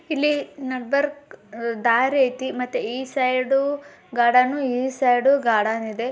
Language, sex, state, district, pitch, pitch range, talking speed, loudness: Kannada, male, Karnataka, Bijapur, 255 Hz, 240-275 Hz, 125 wpm, -21 LUFS